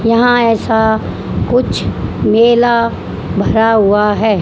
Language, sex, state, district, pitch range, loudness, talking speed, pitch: Hindi, female, Haryana, Charkhi Dadri, 220-235 Hz, -12 LUFS, 95 wpm, 225 Hz